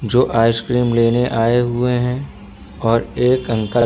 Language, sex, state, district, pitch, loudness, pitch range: Hindi, male, Madhya Pradesh, Bhopal, 120 Hz, -17 LUFS, 115-125 Hz